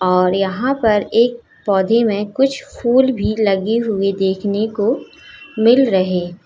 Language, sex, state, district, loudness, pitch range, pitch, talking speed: Hindi, female, Uttar Pradesh, Lalitpur, -16 LUFS, 195-235 Hz, 210 Hz, 140 wpm